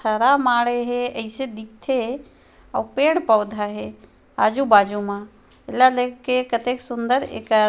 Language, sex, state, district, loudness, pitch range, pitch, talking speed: Chhattisgarhi, female, Chhattisgarh, Rajnandgaon, -21 LUFS, 215-255 Hz, 240 Hz, 130 wpm